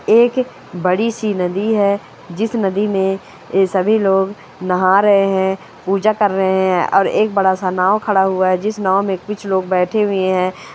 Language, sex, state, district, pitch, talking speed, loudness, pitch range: Hindi, female, Bihar, Sitamarhi, 195 Hz, 190 wpm, -16 LUFS, 185-210 Hz